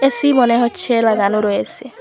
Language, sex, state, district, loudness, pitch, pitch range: Bengali, female, Assam, Hailakandi, -15 LUFS, 235 Hz, 215-250 Hz